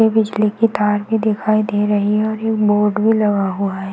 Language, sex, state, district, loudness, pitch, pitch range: Hindi, female, Uttar Pradesh, Varanasi, -17 LUFS, 210 Hz, 205-220 Hz